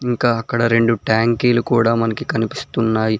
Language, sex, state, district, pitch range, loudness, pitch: Telugu, male, Telangana, Mahabubabad, 115-120 Hz, -17 LUFS, 115 Hz